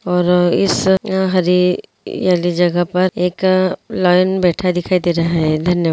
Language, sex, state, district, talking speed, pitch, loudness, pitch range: Hindi, female, Andhra Pradesh, Guntur, 140 wpm, 180 Hz, -15 LUFS, 175-185 Hz